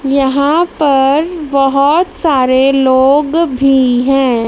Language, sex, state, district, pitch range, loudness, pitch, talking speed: Hindi, female, Madhya Pradesh, Dhar, 265-300 Hz, -11 LUFS, 275 Hz, 95 wpm